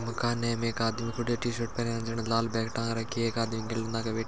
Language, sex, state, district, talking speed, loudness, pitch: Marwari, male, Rajasthan, Churu, 280 wpm, -31 LUFS, 115 Hz